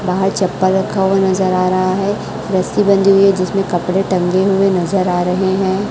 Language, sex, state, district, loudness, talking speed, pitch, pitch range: Hindi, male, Chhattisgarh, Raipur, -15 LUFS, 205 wpm, 190 Hz, 185-195 Hz